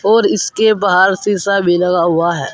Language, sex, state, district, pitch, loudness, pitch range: Hindi, male, Uttar Pradesh, Saharanpur, 190 Hz, -13 LUFS, 175-205 Hz